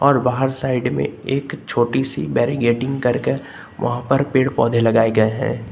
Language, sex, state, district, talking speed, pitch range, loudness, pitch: Hindi, male, Uttar Pradesh, Lucknow, 170 wpm, 115-135 Hz, -19 LUFS, 125 Hz